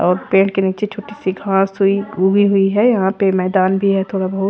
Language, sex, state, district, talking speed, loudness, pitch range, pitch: Hindi, female, Haryana, Rohtak, 240 wpm, -16 LUFS, 190-200 Hz, 195 Hz